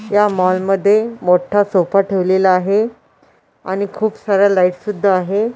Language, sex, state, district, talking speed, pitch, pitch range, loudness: Marathi, female, Maharashtra, Washim, 140 wpm, 195 Hz, 185-210 Hz, -15 LUFS